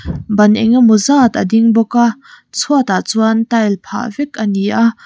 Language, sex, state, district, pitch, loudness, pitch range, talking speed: Mizo, female, Mizoram, Aizawl, 225 Hz, -13 LUFS, 215-240 Hz, 190 wpm